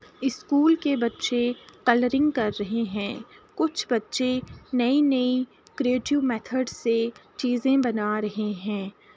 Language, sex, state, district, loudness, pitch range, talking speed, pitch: Hindi, female, Uttar Pradesh, Jalaun, -25 LUFS, 225-270 Hz, 125 wpm, 245 Hz